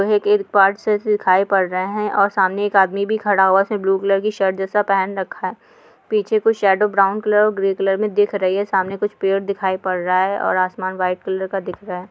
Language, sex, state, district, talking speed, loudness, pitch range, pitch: Hindi, female, Uttar Pradesh, Muzaffarnagar, 265 wpm, -18 LUFS, 190-205 Hz, 195 Hz